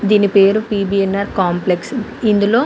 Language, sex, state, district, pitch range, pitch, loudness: Telugu, female, Andhra Pradesh, Anantapur, 195-215 Hz, 200 Hz, -15 LUFS